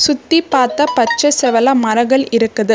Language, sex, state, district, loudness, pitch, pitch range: Tamil, female, Karnataka, Bangalore, -13 LUFS, 260 Hz, 230-290 Hz